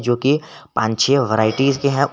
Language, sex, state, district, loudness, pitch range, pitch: Hindi, male, Jharkhand, Garhwa, -18 LUFS, 110-140 Hz, 135 Hz